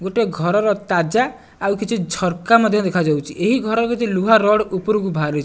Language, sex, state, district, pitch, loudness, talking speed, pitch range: Odia, male, Odisha, Nuapada, 205 Hz, -18 LUFS, 200 wpm, 180-225 Hz